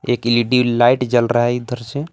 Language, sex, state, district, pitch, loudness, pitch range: Hindi, male, Jharkhand, Palamu, 120 Hz, -16 LUFS, 120-125 Hz